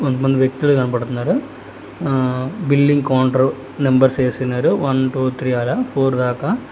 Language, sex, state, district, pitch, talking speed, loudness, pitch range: Telugu, male, Telangana, Hyderabad, 130 Hz, 125 wpm, -17 LUFS, 130-140 Hz